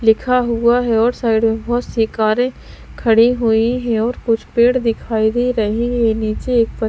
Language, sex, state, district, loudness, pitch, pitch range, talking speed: Hindi, female, Bihar, Patna, -16 LUFS, 230 Hz, 225-245 Hz, 185 wpm